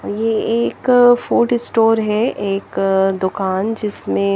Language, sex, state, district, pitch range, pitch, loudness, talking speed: Hindi, female, Chandigarh, Chandigarh, 195-230 Hz, 210 Hz, -16 LUFS, 125 wpm